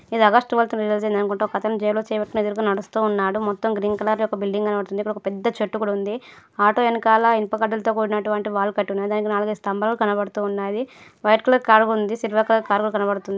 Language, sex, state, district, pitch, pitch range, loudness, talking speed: Telugu, female, Andhra Pradesh, Guntur, 215 Hz, 205-220 Hz, -21 LUFS, 215 wpm